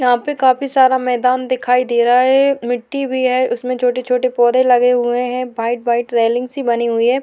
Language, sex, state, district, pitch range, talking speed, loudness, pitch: Hindi, female, Maharashtra, Chandrapur, 240-255 Hz, 215 wpm, -15 LUFS, 250 Hz